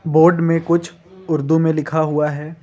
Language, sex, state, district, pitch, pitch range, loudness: Hindi, male, Jharkhand, Ranchi, 160 Hz, 155-170 Hz, -17 LUFS